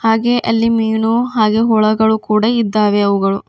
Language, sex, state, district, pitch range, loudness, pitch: Kannada, female, Karnataka, Bidar, 215-230 Hz, -14 LUFS, 220 Hz